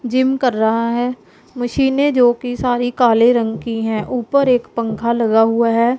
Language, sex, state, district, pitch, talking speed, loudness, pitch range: Hindi, female, Punjab, Pathankot, 240 Hz, 180 wpm, -16 LUFS, 230-250 Hz